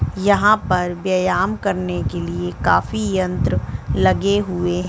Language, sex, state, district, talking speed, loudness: Hindi, female, Chhattisgarh, Bilaspur, 125 wpm, -19 LUFS